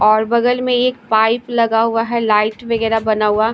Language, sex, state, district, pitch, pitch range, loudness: Hindi, female, Bihar, Patna, 225 Hz, 220-235 Hz, -16 LUFS